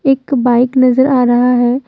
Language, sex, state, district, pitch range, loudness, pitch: Hindi, female, Jharkhand, Deoghar, 245-265 Hz, -11 LUFS, 255 Hz